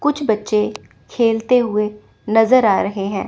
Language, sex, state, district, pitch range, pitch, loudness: Hindi, female, Chandigarh, Chandigarh, 210-240 Hz, 220 Hz, -17 LUFS